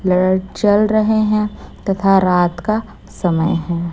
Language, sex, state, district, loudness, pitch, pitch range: Hindi, female, Chhattisgarh, Raipur, -16 LUFS, 195 Hz, 175-215 Hz